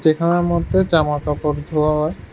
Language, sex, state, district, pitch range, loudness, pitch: Bengali, male, Tripura, West Tripura, 150-170 Hz, -18 LUFS, 155 Hz